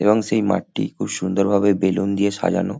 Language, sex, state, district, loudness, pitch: Bengali, male, West Bengal, Kolkata, -20 LUFS, 100 Hz